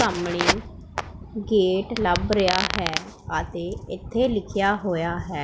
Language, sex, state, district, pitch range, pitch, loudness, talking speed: Punjabi, female, Punjab, Pathankot, 175-215 Hz, 195 Hz, -24 LUFS, 120 wpm